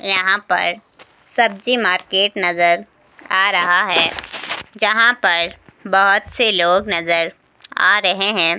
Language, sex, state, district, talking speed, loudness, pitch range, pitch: Hindi, female, Himachal Pradesh, Shimla, 120 wpm, -16 LUFS, 175-215 Hz, 195 Hz